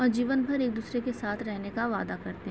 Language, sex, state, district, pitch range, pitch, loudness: Hindi, female, Uttar Pradesh, Gorakhpur, 225-250 Hz, 240 Hz, -30 LUFS